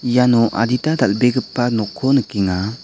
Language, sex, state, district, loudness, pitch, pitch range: Garo, male, Meghalaya, West Garo Hills, -17 LUFS, 120 Hz, 105-125 Hz